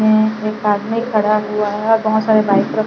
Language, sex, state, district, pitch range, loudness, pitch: Hindi, female, Chhattisgarh, Raipur, 210-215 Hz, -16 LUFS, 215 Hz